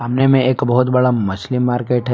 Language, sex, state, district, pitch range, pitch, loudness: Hindi, male, Jharkhand, Palamu, 120-125 Hz, 125 Hz, -16 LUFS